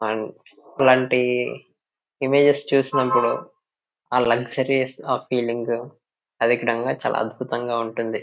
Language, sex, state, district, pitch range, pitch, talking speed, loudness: Telugu, male, Telangana, Nalgonda, 115-130 Hz, 125 Hz, 80 wpm, -22 LUFS